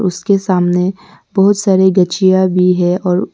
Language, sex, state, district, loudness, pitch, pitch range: Hindi, male, Arunachal Pradesh, Lower Dibang Valley, -13 LUFS, 185 Hz, 180-195 Hz